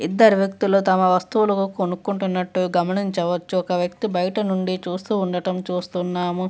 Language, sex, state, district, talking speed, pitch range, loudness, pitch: Telugu, female, Andhra Pradesh, Visakhapatnam, 120 wpm, 180-195 Hz, -21 LUFS, 185 Hz